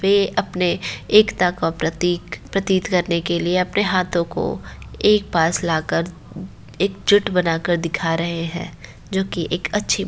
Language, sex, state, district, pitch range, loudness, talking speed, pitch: Hindi, female, Uttar Pradesh, Varanasi, 170-190 Hz, -20 LUFS, 155 wpm, 175 Hz